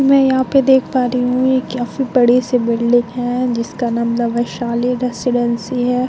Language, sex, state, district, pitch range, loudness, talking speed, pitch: Hindi, female, Bihar, Vaishali, 240-255 Hz, -16 LUFS, 180 wpm, 245 Hz